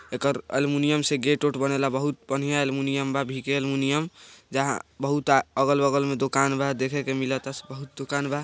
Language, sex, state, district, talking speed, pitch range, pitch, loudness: Bhojpuri, male, Bihar, East Champaran, 180 wpm, 135-145 Hz, 140 Hz, -25 LUFS